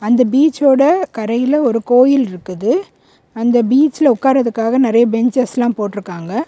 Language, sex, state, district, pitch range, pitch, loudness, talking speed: Tamil, female, Tamil Nadu, Kanyakumari, 225-270 Hz, 245 Hz, -14 LUFS, 100 wpm